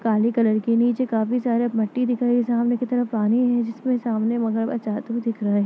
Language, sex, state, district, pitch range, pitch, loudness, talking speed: Hindi, female, Chhattisgarh, Bastar, 225-245 Hz, 235 Hz, -22 LUFS, 235 wpm